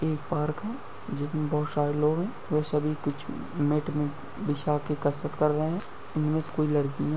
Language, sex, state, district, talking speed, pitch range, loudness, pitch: Hindi, male, Bihar, Bhagalpur, 190 wpm, 145-155 Hz, -29 LUFS, 150 Hz